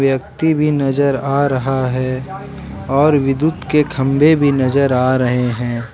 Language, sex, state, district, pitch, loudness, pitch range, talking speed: Hindi, male, Jharkhand, Ranchi, 135 Hz, -15 LUFS, 130-145 Hz, 150 wpm